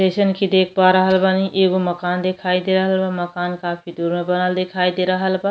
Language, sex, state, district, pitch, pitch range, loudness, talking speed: Bhojpuri, female, Uttar Pradesh, Deoria, 185 Hz, 180-190 Hz, -18 LUFS, 230 wpm